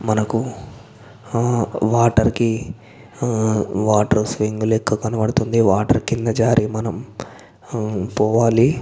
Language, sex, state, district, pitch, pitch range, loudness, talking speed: Telugu, male, Andhra Pradesh, Visakhapatnam, 110 Hz, 110-115 Hz, -19 LUFS, 95 wpm